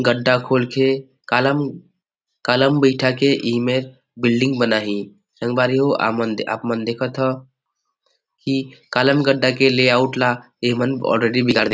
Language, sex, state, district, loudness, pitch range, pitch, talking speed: Chhattisgarhi, male, Chhattisgarh, Rajnandgaon, -18 LUFS, 120-135 Hz, 125 Hz, 145 wpm